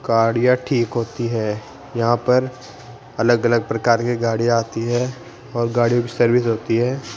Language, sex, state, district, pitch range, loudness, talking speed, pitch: Hindi, male, Rajasthan, Jaipur, 115-120 Hz, -19 LUFS, 160 wpm, 120 Hz